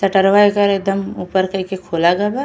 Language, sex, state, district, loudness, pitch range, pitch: Bhojpuri, female, Uttar Pradesh, Ghazipur, -16 LUFS, 190-200 Hz, 195 Hz